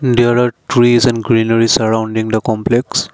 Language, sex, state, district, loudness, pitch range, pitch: English, male, Assam, Kamrup Metropolitan, -13 LUFS, 110-120 Hz, 115 Hz